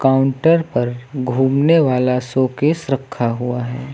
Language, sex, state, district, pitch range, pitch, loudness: Hindi, female, Uttar Pradesh, Lucknow, 125-140 Hz, 130 Hz, -17 LUFS